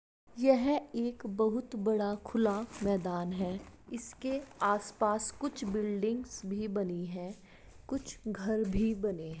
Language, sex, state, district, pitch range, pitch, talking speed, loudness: Hindi, female, Bihar, Madhepura, 200-240 Hz, 215 Hz, 120 wpm, -34 LUFS